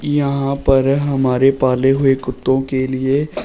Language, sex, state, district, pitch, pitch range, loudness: Hindi, male, Uttar Pradesh, Shamli, 135 Hz, 130-140 Hz, -16 LUFS